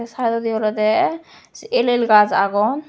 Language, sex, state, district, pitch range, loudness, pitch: Chakma, female, Tripura, West Tripura, 215-250 Hz, -17 LUFS, 230 Hz